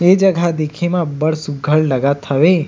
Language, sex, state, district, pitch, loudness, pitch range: Chhattisgarhi, male, Chhattisgarh, Sukma, 155 Hz, -16 LUFS, 145-175 Hz